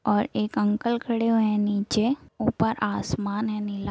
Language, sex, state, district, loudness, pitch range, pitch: Hindi, female, Bihar, Saran, -25 LUFS, 205-225 Hz, 215 Hz